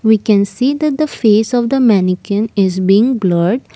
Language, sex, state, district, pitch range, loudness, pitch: English, female, Assam, Kamrup Metropolitan, 195-250 Hz, -13 LUFS, 215 Hz